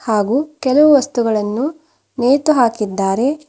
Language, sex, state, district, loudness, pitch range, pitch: Kannada, female, Karnataka, Bidar, -15 LUFS, 225-295 Hz, 260 Hz